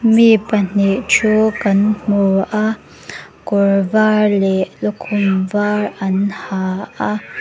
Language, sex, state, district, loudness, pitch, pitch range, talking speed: Mizo, female, Mizoram, Aizawl, -16 LUFS, 205 Hz, 195-215 Hz, 115 wpm